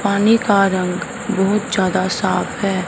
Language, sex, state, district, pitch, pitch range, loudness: Hindi, male, Punjab, Fazilka, 195 Hz, 185-210 Hz, -17 LUFS